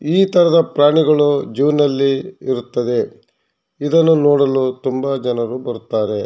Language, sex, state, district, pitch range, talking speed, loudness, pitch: Kannada, male, Karnataka, Shimoga, 125-150 Hz, 105 wpm, -16 LUFS, 140 Hz